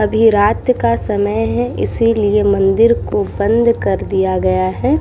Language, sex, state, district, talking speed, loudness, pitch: Hindi, female, Uttar Pradesh, Muzaffarnagar, 155 wpm, -14 LUFS, 195 Hz